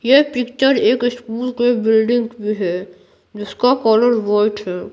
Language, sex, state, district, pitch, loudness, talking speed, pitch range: Hindi, female, Bihar, Patna, 230 Hz, -17 LUFS, 145 wpm, 210-245 Hz